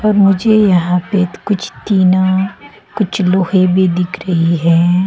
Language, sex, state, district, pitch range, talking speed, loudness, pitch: Hindi, female, Arunachal Pradesh, Longding, 180-200 Hz, 130 wpm, -13 LUFS, 185 Hz